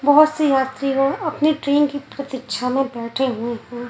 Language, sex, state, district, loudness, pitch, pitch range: Hindi, female, Punjab, Pathankot, -20 LUFS, 270 Hz, 250-290 Hz